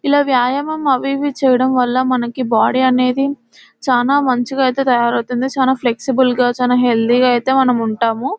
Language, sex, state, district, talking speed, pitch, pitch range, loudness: Telugu, female, Telangana, Nalgonda, 150 wpm, 255 Hz, 245-265 Hz, -15 LUFS